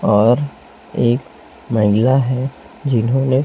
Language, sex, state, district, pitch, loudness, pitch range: Hindi, male, Chhattisgarh, Raipur, 125 Hz, -17 LUFS, 115-135 Hz